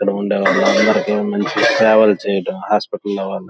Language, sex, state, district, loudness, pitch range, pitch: Telugu, male, Andhra Pradesh, Krishna, -16 LUFS, 100-105 Hz, 105 Hz